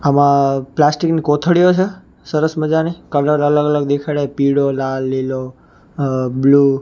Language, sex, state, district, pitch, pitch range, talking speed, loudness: Gujarati, male, Gujarat, Gandhinagar, 145 Hz, 135-155 Hz, 150 wpm, -16 LUFS